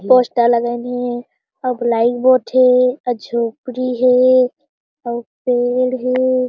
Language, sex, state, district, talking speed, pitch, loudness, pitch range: Chhattisgarhi, female, Chhattisgarh, Jashpur, 120 wpm, 250 Hz, -16 LUFS, 240-255 Hz